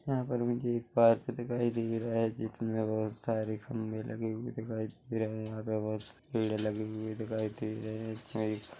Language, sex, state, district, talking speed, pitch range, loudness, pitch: Hindi, male, Chhattisgarh, Korba, 225 wpm, 110-115 Hz, -34 LUFS, 110 Hz